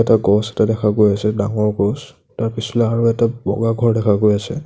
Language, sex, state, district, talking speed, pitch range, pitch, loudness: Assamese, male, Assam, Sonitpur, 220 wpm, 105-115 Hz, 110 Hz, -17 LUFS